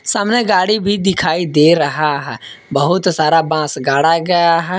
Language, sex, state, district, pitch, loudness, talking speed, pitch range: Hindi, male, Jharkhand, Palamu, 165 Hz, -14 LUFS, 165 wpm, 150-185 Hz